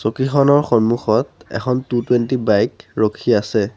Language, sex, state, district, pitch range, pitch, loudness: Assamese, male, Assam, Sonitpur, 110-130 Hz, 120 Hz, -17 LUFS